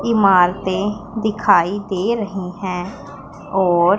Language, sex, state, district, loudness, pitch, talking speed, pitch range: Hindi, female, Punjab, Pathankot, -18 LUFS, 195 Hz, 105 wpm, 185-210 Hz